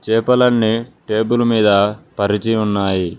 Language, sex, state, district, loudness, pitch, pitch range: Telugu, male, Telangana, Mahabubabad, -16 LUFS, 110 Hz, 100-115 Hz